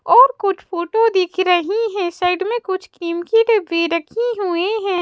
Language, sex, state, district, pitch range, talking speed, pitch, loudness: Hindi, female, Madhya Pradesh, Bhopal, 350-445 Hz, 180 wpm, 380 Hz, -18 LUFS